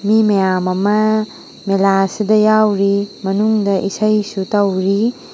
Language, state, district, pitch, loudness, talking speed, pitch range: Manipuri, Manipur, Imphal West, 200 Hz, -15 LUFS, 100 wpm, 195-215 Hz